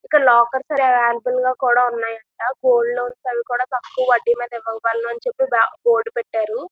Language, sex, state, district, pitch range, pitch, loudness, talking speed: Telugu, female, Andhra Pradesh, Visakhapatnam, 235-255 Hz, 245 Hz, -19 LUFS, 160 wpm